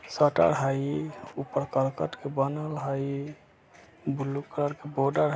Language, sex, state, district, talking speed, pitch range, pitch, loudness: Bajjika, male, Bihar, Vaishali, 135 wpm, 135-145 Hz, 140 Hz, -29 LUFS